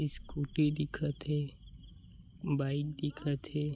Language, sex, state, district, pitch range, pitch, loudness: Chhattisgarhi, male, Chhattisgarh, Bilaspur, 145-150 Hz, 150 Hz, -35 LUFS